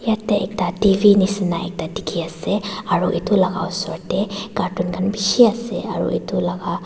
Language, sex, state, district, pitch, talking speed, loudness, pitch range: Nagamese, female, Nagaland, Dimapur, 200 Hz, 165 wpm, -20 LUFS, 185-205 Hz